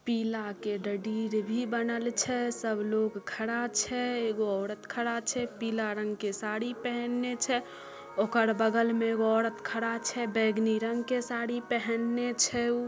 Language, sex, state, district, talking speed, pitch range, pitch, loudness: Maithili, female, Bihar, Samastipur, 160 wpm, 220-240 Hz, 230 Hz, -30 LUFS